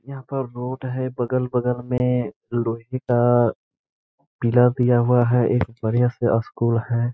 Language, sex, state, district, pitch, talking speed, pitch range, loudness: Hindi, male, Bihar, Gaya, 125 Hz, 135 wpm, 120-125 Hz, -21 LUFS